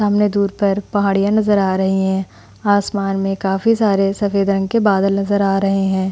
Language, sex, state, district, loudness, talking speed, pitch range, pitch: Hindi, female, Uttar Pradesh, Hamirpur, -17 LUFS, 195 wpm, 195-205 Hz, 195 Hz